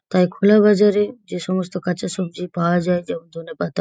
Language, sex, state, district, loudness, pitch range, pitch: Bengali, female, West Bengal, Purulia, -19 LUFS, 175-195 Hz, 180 Hz